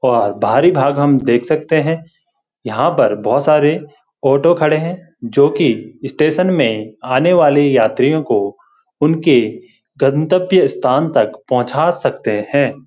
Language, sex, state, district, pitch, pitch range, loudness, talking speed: Hindi, male, Uttarakhand, Uttarkashi, 145 Hz, 130-160 Hz, -14 LUFS, 130 wpm